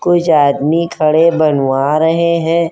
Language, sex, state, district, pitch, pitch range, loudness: Hindi, female, Uttar Pradesh, Hamirpur, 160 Hz, 145-170 Hz, -12 LUFS